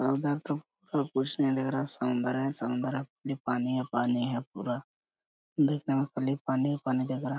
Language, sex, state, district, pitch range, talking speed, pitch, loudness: Hindi, male, Jharkhand, Sahebganj, 125-140 Hz, 185 wpm, 130 Hz, -31 LUFS